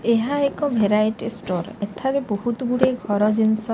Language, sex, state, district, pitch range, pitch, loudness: Odia, female, Odisha, Khordha, 210-250 Hz, 230 Hz, -22 LUFS